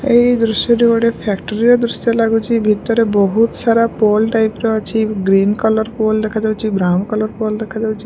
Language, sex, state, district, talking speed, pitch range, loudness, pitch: Odia, female, Odisha, Malkangiri, 165 wpm, 215-230 Hz, -15 LUFS, 220 Hz